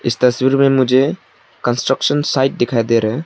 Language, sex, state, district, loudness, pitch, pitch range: Hindi, male, Arunachal Pradesh, Lower Dibang Valley, -15 LUFS, 130 Hz, 120-135 Hz